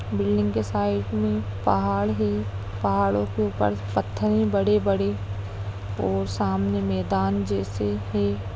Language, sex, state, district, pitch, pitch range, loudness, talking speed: Hindi, female, Bihar, Sitamarhi, 100 Hz, 100-105 Hz, -25 LUFS, 120 wpm